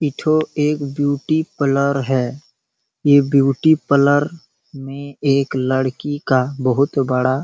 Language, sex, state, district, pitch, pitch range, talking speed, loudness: Hindi, male, Chhattisgarh, Bastar, 140 Hz, 135-145 Hz, 115 wpm, -17 LUFS